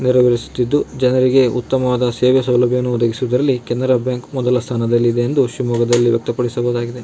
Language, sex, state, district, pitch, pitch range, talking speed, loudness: Kannada, male, Karnataka, Shimoga, 125 Hz, 120-130 Hz, 120 wpm, -16 LUFS